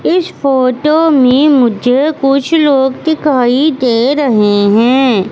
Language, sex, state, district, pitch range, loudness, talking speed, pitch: Hindi, female, Madhya Pradesh, Katni, 245-295 Hz, -10 LUFS, 115 wpm, 270 Hz